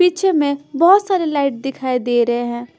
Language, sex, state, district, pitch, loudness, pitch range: Hindi, female, Bihar, Patna, 280 Hz, -17 LUFS, 245-345 Hz